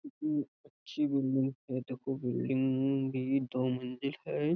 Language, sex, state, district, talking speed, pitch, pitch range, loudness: Hindi, male, Uttar Pradesh, Budaun, 130 wpm, 135 Hz, 130-140 Hz, -33 LUFS